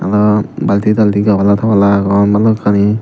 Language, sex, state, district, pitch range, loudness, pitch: Chakma, male, Tripura, Dhalai, 100-105 Hz, -11 LUFS, 105 Hz